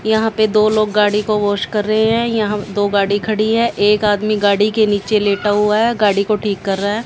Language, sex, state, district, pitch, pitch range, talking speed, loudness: Hindi, female, Haryana, Jhajjar, 210 Hz, 205-215 Hz, 245 wpm, -15 LUFS